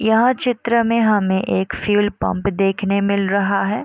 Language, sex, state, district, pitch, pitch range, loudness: Hindi, female, Bihar, Gopalganj, 200 Hz, 195-225 Hz, -18 LUFS